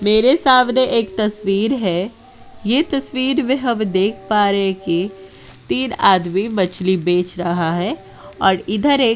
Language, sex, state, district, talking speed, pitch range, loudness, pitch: Hindi, female, Uttar Pradesh, Jyotiba Phule Nagar, 150 wpm, 180-250 Hz, -17 LUFS, 205 Hz